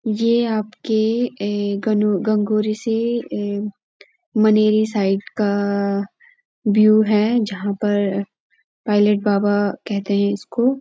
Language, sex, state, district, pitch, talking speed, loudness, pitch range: Hindi, female, Uttarakhand, Uttarkashi, 210 Hz, 110 wpm, -19 LUFS, 205-220 Hz